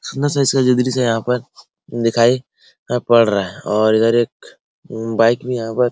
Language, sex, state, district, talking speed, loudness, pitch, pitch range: Hindi, male, Bihar, Araria, 195 wpm, -17 LUFS, 120 Hz, 115-125 Hz